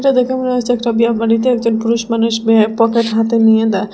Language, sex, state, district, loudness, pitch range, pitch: Bengali, female, Assam, Hailakandi, -14 LUFS, 225-240 Hz, 230 Hz